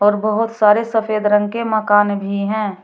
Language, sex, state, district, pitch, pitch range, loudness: Hindi, female, Uttar Pradesh, Shamli, 210 Hz, 205-220 Hz, -16 LUFS